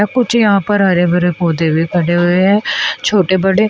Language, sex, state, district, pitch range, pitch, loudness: Hindi, female, Uttar Pradesh, Shamli, 175-205 Hz, 190 Hz, -13 LUFS